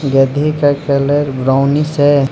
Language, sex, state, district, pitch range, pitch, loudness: Hindi, male, Arunachal Pradesh, Lower Dibang Valley, 135-145 Hz, 145 Hz, -13 LUFS